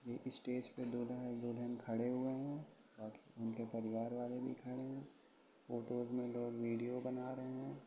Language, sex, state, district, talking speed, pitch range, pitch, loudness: Hindi, male, Uttar Pradesh, Ghazipur, 175 wpm, 120-130 Hz, 120 Hz, -44 LUFS